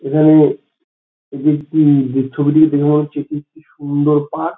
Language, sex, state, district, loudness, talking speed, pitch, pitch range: Bengali, male, West Bengal, Dakshin Dinajpur, -14 LUFS, 170 wpm, 150 Hz, 145-155 Hz